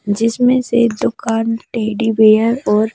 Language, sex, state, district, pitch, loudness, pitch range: Hindi, female, Madhya Pradesh, Bhopal, 225 Hz, -15 LUFS, 215-235 Hz